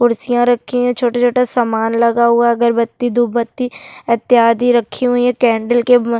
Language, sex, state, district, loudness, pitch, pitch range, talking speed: Hindi, female, Uttarakhand, Tehri Garhwal, -14 LUFS, 240 Hz, 235-245 Hz, 175 wpm